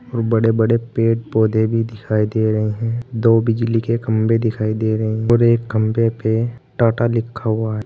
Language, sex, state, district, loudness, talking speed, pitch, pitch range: Hindi, male, Uttar Pradesh, Saharanpur, -18 LUFS, 190 wpm, 115 Hz, 110-115 Hz